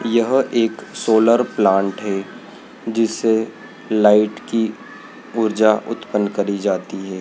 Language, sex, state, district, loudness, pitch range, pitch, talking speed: Hindi, male, Madhya Pradesh, Dhar, -18 LUFS, 105-115 Hz, 110 Hz, 110 wpm